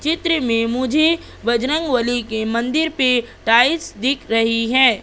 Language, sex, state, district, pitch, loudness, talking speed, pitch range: Hindi, female, Madhya Pradesh, Katni, 250 Hz, -18 LUFS, 130 wpm, 230-305 Hz